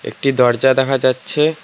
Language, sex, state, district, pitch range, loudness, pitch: Bengali, male, West Bengal, Alipurduar, 130-145 Hz, -15 LUFS, 135 Hz